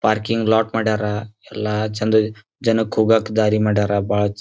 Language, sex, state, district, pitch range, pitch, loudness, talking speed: Kannada, male, Karnataka, Dharwad, 105-110 Hz, 110 Hz, -19 LUFS, 165 wpm